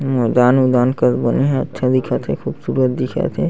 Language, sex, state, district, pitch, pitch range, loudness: Chhattisgarhi, male, Chhattisgarh, Sarguja, 130 Hz, 125-135 Hz, -17 LUFS